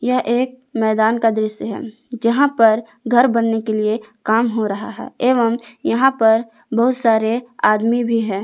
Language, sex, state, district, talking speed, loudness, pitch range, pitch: Hindi, female, Jharkhand, Palamu, 170 wpm, -17 LUFS, 220-245 Hz, 230 Hz